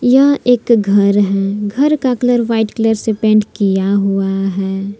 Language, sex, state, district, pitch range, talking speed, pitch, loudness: Hindi, female, Jharkhand, Palamu, 195-240 Hz, 170 wpm, 215 Hz, -14 LUFS